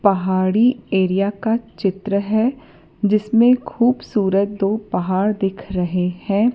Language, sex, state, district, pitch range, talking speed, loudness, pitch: Hindi, female, Madhya Pradesh, Dhar, 190-225 Hz, 110 wpm, -19 LUFS, 200 Hz